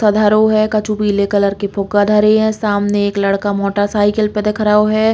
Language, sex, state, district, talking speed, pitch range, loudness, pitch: Bundeli, female, Uttar Pradesh, Hamirpur, 175 wpm, 205-215 Hz, -14 LUFS, 210 Hz